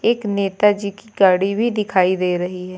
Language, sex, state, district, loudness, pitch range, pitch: Hindi, female, Uttar Pradesh, Lucknow, -18 LUFS, 185-210 Hz, 200 Hz